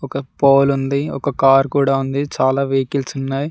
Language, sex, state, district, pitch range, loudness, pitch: Telugu, male, Telangana, Mahabubabad, 135-140 Hz, -17 LUFS, 135 Hz